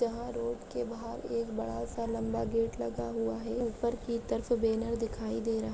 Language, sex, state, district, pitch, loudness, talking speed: Hindi, female, Maharashtra, Solapur, 225 Hz, -34 LUFS, 200 wpm